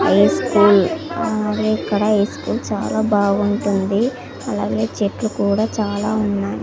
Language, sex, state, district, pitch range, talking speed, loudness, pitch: Telugu, female, Andhra Pradesh, Sri Satya Sai, 200-215 Hz, 110 wpm, -18 LUFS, 205 Hz